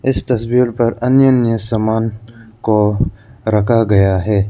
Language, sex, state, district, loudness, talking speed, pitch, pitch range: Hindi, male, Arunachal Pradesh, Lower Dibang Valley, -15 LUFS, 135 wpm, 115 Hz, 105-120 Hz